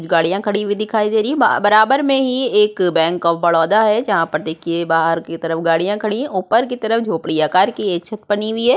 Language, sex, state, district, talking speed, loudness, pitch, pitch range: Hindi, female, Uttarakhand, Tehri Garhwal, 245 wpm, -16 LUFS, 205 Hz, 165-220 Hz